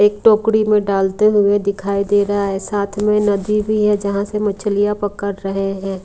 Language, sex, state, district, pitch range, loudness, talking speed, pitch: Hindi, female, Punjab, Kapurthala, 200-210 Hz, -17 LUFS, 200 wpm, 205 Hz